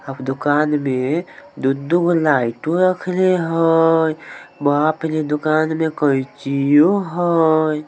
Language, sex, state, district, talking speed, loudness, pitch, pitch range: Maithili, male, Bihar, Samastipur, 115 wpm, -17 LUFS, 155 Hz, 145-165 Hz